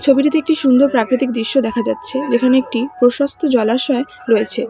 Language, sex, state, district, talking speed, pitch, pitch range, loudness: Bengali, female, West Bengal, Alipurduar, 155 wpm, 255 Hz, 240-275 Hz, -16 LUFS